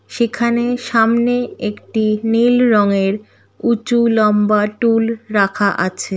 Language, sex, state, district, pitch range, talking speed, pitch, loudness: Bengali, female, West Bengal, Kolkata, 210-235 Hz, 95 wpm, 225 Hz, -16 LUFS